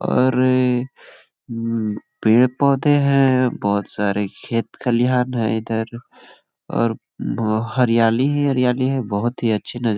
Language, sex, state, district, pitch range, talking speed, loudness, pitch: Hindi, male, Jharkhand, Sahebganj, 110-130 Hz, 125 wpm, -19 LUFS, 120 Hz